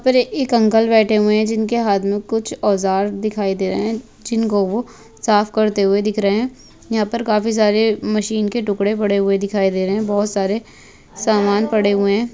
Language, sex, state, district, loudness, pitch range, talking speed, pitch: Hindi, female, Bihar, Madhepura, -18 LUFS, 200-225 Hz, 210 wpm, 215 Hz